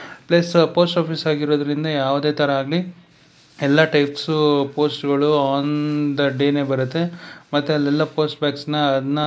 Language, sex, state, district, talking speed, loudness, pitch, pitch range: Kannada, male, Karnataka, Bangalore, 140 wpm, -19 LUFS, 150 Hz, 145-160 Hz